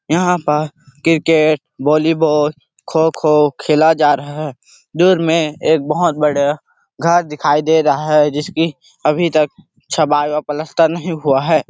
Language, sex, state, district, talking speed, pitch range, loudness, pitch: Hindi, male, Chhattisgarh, Sarguja, 155 wpm, 150-165 Hz, -15 LUFS, 155 Hz